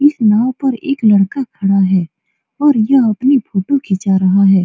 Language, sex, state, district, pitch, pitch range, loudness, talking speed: Hindi, female, Bihar, Supaul, 220 Hz, 195-270 Hz, -13 LUFS, 180 wpm